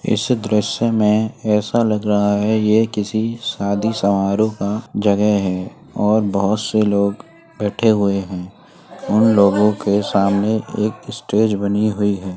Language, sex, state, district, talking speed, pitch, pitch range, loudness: Hindi, male, Uttar Pradesh, Etah, 150 wpm, 105 Hz, 100-110 Hz, -17 LUFS